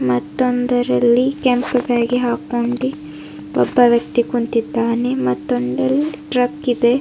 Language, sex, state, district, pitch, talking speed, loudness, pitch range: Kannada, female, Karnataka, Bidar, 240 Hz, 95 wpm, -17 LUFS, 150-250 Hz